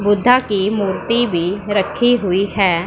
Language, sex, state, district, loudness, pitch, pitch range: Hindi, female, Punjab, Pathankot, -16 LUFS, 205 Hz, 190-230 Hz